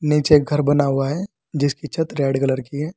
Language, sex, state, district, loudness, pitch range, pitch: Hindi, male, Uttar Pradesh, Saharanpur, -20 LUFS, 140-150 Hz, 145 Hz